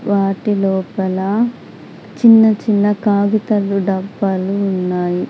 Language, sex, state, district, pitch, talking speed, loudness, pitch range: Telugu, female, Telangana, Adilabad, 200 Hz, 70 wpm, -15 LUFS, 190-210 Hz